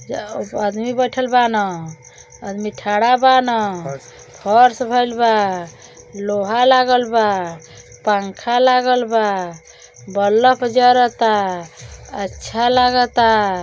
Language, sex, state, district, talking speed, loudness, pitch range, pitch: Bhojpuri, male, Uttar Pradesh, Deoria, 90 wpm, -16 LUFS, 200-245 Hz, 225 Hz